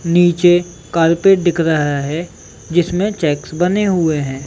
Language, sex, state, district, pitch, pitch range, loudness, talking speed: Hindi, male, Chhattisgarh, Bilaspur, 170 Hz, 155-175 Hz, -15 LUFS, 135 wpm